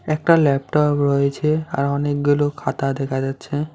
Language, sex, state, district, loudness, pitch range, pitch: Bengali, male, West Bengal, Alipurduar, -19 LUFS, 140-150 Hz, 145 Hz